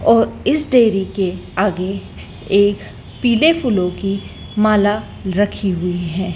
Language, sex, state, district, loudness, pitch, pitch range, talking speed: Hindi, female, Madhya Pradesh, Dhar, -17 LUFS, 200 Hz, 185-215 Hz, 115 wpm